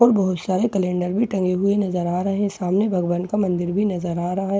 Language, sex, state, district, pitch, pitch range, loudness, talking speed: Hindi, female, Bihar, Katihar, 185 Hz, 180-200 Hz, -21 LUFS, 275 wpm